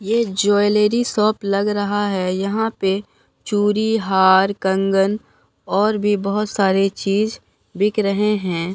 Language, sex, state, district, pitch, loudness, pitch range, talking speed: Hindi, female, Bihar, Katihar, 205 Hz, -18 LUFS, 195-210 Hz, 130 wpm